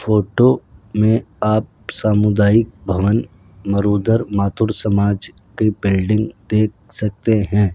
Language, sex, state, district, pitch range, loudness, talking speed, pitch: Hindi, male, Rajasthan, Jaipur, 100-110 Hz, -17 LUFS, 100 wpm, 105 Hz